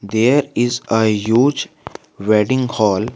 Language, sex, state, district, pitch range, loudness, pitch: English, male, Jharkhand, Garhwa, 105-125 Hz, -16 LUFS, 110 Hz